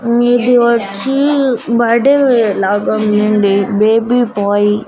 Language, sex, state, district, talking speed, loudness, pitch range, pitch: Telugu, female, Andhra Pradesh, Annamaya, 100 wpm, -12 LUFS, 205-245 Hz, 230 Hz